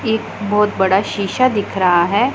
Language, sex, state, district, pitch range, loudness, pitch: Hindi, female, Punjab, Pathankot, 190-220 Hz, -16 LUFS, 205 Hz